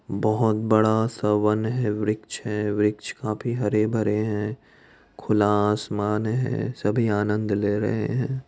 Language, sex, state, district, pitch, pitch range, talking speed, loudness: Hindi, male, Bihar, Madhepura, 105 Hz, 105-110 Hz, 140 wpm, -24 LUFS